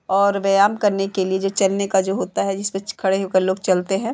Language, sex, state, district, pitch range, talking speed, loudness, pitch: Hindi, female, Uttar Pradesh, Jalaun, 190-200 Hz, 245 wpm, -20 LUFS, 195 Hz